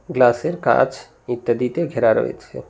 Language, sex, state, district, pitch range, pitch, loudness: Bengali, male, West Bengal, Cooch Behar, 120-160 Hz, 125 Hz, -19 LUFS